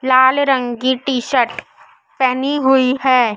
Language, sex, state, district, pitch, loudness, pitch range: Hindi, female, Madhya Pradesh, Dhar, 260 Hz, -15 LUFS, 250-265 Hz